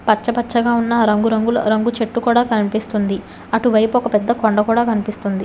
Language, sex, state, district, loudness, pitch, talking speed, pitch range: Telugu, female, Telangana, Hyderabad, -17 LUFS, 225 Hz, 155 wpm, 215-235 Hz